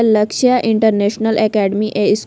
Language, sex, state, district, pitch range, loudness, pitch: Hindi, female, Uttar Pradesh, Jalaun, 205-225 Hz, -15 LUFS, 215 Hz